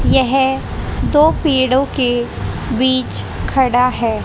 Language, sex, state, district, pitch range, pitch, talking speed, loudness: Hindi, female, Haryana, Rohtak, 245-265 Hz, 260 Hz, 100 wpm, -16 LUFS